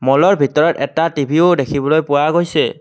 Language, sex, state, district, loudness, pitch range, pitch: Assamese, male, Assam, Kamrup Metropolitan, -14 LUFS, 140-165 Hz, 150 Hz